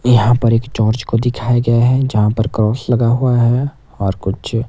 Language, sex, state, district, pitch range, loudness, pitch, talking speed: Hindi, male, Himachal Pradesh, Shimla, 110-125 Hz, -15 LUFS, 120 Hz, 205 wpm